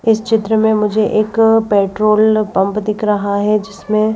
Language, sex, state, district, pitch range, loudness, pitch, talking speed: Hindi, female, Madhya Pradesh, Bhopal, 210-220 Hz, -14 LUFS, 215 Hz, 160 wpm